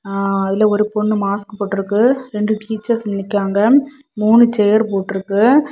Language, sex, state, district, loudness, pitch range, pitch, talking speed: Tamil, female, Tamil Nadu, Kanyakumari, -16 LUFS, 200-225 Hz, 210 Hz, 135 wpm